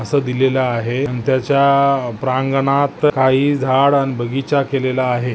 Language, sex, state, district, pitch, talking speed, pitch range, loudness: Marathi, male, Maharashtra, Nagpur, 135 Hz, 135 wpm, 130-140 Hz, -16 LUFS